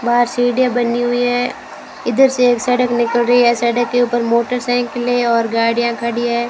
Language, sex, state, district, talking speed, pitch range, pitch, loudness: Hindi, female, Rajasthan, Bikaner, 185 wpm, 235-245 Hz, 240 Hz, -15 LUFS